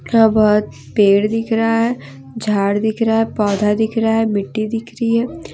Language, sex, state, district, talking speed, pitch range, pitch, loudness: Hindi, female, Jharkhand, Deoghar, 195 wpm, 210-225 Hz, 220 Hz, -16 LUFS